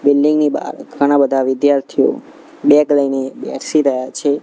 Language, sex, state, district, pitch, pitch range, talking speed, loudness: Gujarati, male, Gujarat, Gandhinagar, 145 Hz, 135-145 Hz, 135 wpm, -15 LUFS